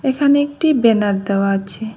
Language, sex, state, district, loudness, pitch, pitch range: Bengali, female, West Bengal, Cooch Behar, -16 LUFS, 220 Hz, 200-285 Hz